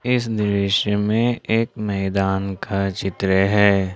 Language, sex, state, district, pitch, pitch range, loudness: Hindi, male, Jharkhand, Ranchi, 100 Hz, 95-110 Hz, -20 LUFS